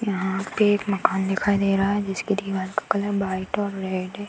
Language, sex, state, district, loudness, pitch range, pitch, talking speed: Hindi, female, Uttar Pradesh, Hamirpur, -24 LUFS, 190-205 Hz, 195 Hz, 225 wpm